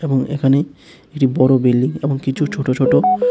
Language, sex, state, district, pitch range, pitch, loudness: Bengali, male, Tripura, West Tripura, 130-150 Hz, 135 Hz, -16 LUFS